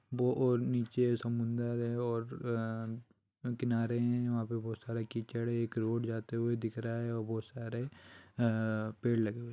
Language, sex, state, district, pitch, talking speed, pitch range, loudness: Hindi, male, Bihar, East Champaran, 115 Hz, 190 wpm, 115-120 Hz, -35 LUFS